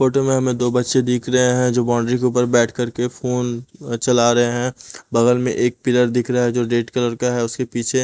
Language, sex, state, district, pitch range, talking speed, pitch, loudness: Hindi, male, Punjab, Pathankot, 120-125 Hz, 245 wpm, 125 Hz, -18 LUFS